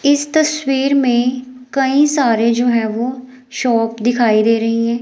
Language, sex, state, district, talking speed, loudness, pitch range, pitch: Hindi, female, Himachal Pradesh, Shimla, 155 wpm, -15 LUFS, 230-270 Hz, 250 Hz